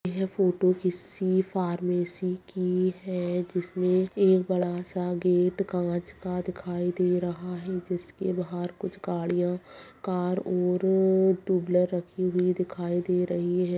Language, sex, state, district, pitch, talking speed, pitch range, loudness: Hindi, female, Bihar, Bhagalpur, 180 Hz, 130 wpm, 180-185 Hz, -27 LUFS